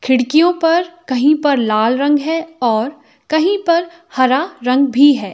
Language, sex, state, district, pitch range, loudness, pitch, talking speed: Hindi, female, Himachal Pradesh, Shimla, 255-330 Hz, -15 LUFS, 290 Hz, 155 wpm